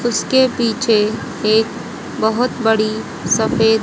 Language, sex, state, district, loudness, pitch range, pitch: Hindi, female, Haryana, Jhajjar, -16 LUFS, 220-240 Hz, 225 Hz